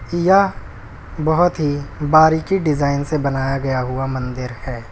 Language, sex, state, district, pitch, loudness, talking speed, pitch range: Hindi, male, Uttar Pradesh, Lucknow, 140 Hz, -18 LUFS, 135 wpm, 130-160 Hz